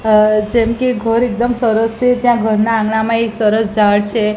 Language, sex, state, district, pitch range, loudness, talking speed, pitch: Gujarati, female, Gujarat, Gandhinagar, 215-235 Hz, -14 LUFS, 180 wpm, 225 Hz